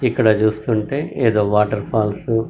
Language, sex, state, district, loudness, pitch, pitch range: Telugu, male, Telangana, Karimnagar, -18 LUFS, 110 Hz, 105-120 Hz